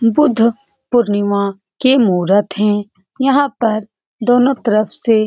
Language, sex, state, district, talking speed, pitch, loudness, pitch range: Hindi, female, Bihar, Saran, 125 wpm, 220 Hz, -15 LUFS, 205-245 Hz